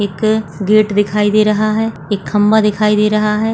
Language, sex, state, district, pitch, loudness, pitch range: Hindi, female, Maharashtra, Solapur, 210 Hz, -14 LUFS, 205-215 Hz